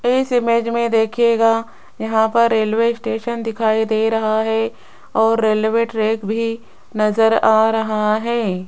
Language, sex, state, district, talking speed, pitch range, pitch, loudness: Hindi, female, Rajasthan, Jaipur, 140 wpm, 220-230 Hz, 225 Hz, -17 LUFS